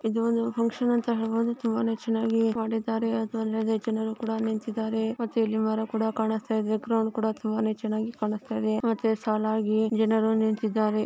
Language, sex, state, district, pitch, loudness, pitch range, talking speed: Kannada, male, Karnataka, Belgaum, 220 Hz, -27 LUFS, 220-225 Hz, 140 wpm